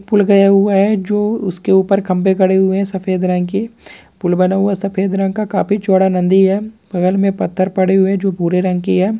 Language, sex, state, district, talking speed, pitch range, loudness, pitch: Hindi, male, Chhattisgarh, Raigarh, 235 wpm, 185-200 Hz, -14 LUFS, 195 Hz